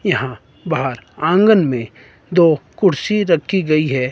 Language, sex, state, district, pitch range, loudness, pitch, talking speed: Hindi, male, Himachal Pradesh, Shimla, 130-190 Hz, -16 LUFS, 155 Hz, 130 wpm